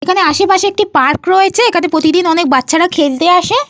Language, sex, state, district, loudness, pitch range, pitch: Bengali, female, Jharkhand, Jamtara, -11 LUFS, 320-385 Hz, 350 Hz